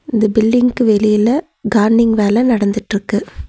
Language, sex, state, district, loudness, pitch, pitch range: Tamil, female, Tamil Nadu, Nilgiris, -14 LUFS, 220 Hz, 210-240 Hz